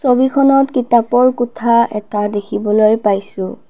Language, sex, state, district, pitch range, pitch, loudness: Assamese, female, Assam, Kamrup Metropolitan, 210-250 Hz, 235 Hz, -14 LUFS